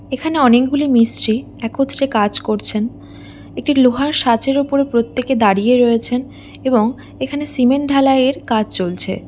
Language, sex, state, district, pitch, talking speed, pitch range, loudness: Bengali, female, West Bengal, Dakshin Dinajpur, 250 Hz, 130 wpm, 230-275 Hz, -16 LUFS